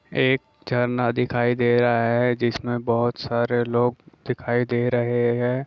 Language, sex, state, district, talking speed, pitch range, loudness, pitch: Hindi, male, Bihar, Jahanabad, 150 wpm, 120-125 Hz, -22 LUFS, 120 Hz